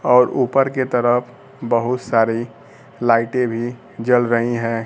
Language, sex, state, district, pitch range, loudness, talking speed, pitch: Hindi, male, Bihar, Kaimur, 115-125 Hz, -18 LUFS, 135 wpm, 120 Hz